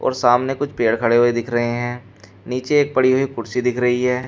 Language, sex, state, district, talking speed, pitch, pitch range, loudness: Hindi, male, Uttar Pradesh, Shamli, 225 wpm, 125 Hz, 120-130 Hz, -19 LUFS